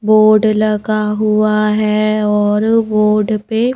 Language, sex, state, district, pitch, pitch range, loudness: Hindi, female, Madhya Pradesh, Bhopal, 215 Hz, 210-215 Hz, -13 LUFS